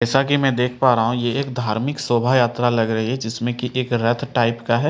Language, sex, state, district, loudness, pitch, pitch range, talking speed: Hindi, male, Delhi, New Delhi, -20 LUFS, 120 Hz, 115-130 Hz, 255 wpm